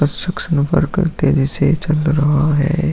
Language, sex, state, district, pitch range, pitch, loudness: Hindi, male, Bihar, Vaishali, 145-160 Hz, 150 Hz, -16 LUFS